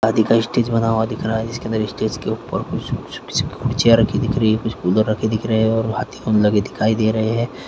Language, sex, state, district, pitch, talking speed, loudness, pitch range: Hindi, male, Chhattisgarh, Korba, 110 Hz, 260 wpm, -19 LUFS, 110-115 Hz